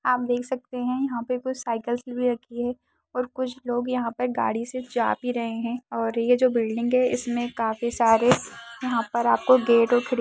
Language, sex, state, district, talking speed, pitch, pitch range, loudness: Hindi, female, Uttar Pradesh, Deoria, 215 wpm, 245 Hz, 235-250 Hz, -24 LUFS